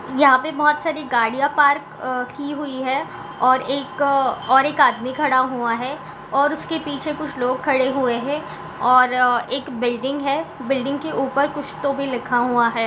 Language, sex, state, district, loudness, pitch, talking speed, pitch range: Hindi, female, Chhattisgarh, Balrampur, -20 LUFS, 270 Hz, 180 wpm, 250-285 Hz